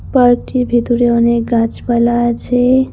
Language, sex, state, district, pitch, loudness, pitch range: Bengali, female, West Bengal, Cooch Behar, 240 Hz, -13 LUFS, 235-245 Hz